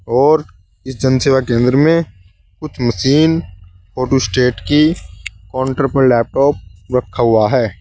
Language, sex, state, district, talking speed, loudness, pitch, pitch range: Hindi, male, Uttar Pradesh, Saharanpur, 115 wpm, -14 LUFS, 125 Hz, 95-135 Hz